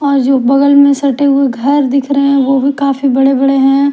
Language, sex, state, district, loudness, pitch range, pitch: Hindi, female, Bihar, Patna, -10 LUFS, 270-280 Hz, 275 Hz